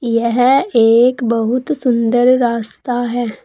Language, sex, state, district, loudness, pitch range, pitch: Hindi, female, Uttar Pradesh, Saharanpur, -14 LUFS, 230-250 Hz, 240 Hz